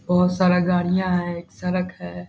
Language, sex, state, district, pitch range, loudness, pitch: Hindi, male, Bihar, Saharsa, 175-180 Hz, -22 LUFS, 180 Hz